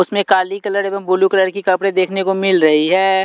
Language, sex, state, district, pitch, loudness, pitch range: Hindi, male, Punjab, Pathankot, 190 Hz, -15 LUFS, 185-195 Hz